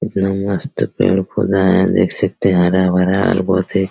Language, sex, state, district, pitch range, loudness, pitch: Hindi, male, Bihar, Araria, 95-100 Hz, -15 LUFS, 95 Hz